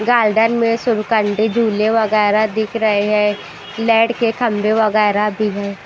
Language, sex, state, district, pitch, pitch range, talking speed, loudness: Hindi, female, Bihar, Patna, 215 Hz, 210-225 Hz, 145 wpm, -16 LUFS